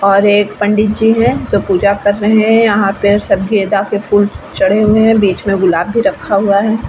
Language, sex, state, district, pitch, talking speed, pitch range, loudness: Hindi, female, Bihar, Vaishali, 205 Hz, 200 wpm, 200-215 Hz, -12 LUFS